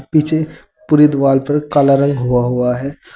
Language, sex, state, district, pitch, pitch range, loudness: Hindi, male, Uttar Pradesh, Saharanpur, 140 Hz, 135-150 Hz, -14 LUFS